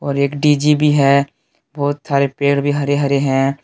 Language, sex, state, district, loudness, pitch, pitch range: Hindi, male, Jharkhand, Deoghar, -16 LUFS, 140 Hz, 140-145 Hz